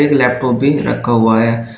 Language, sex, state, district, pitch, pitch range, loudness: Hindi, male, Uttar Pradesh, Shamli, 120 Hz, 115-135 Hz, -13 LUFS